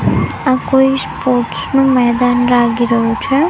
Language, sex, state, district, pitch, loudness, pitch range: Gujarati, female, Gujarat, Gandhinagar, 250 Hz, -13 LUFS, 240-270 Hz